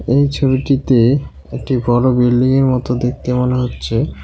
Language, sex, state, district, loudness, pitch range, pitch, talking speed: Bengali, male, West Bengal, Alipurduar, -15 LUFS, 125-135 Hz, 125 Hz, 125 wpm